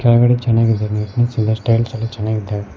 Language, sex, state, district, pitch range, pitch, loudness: Kannada, male, Karnataka, Koppal, 105-120 Hz, 115 Hz, -17 LUFS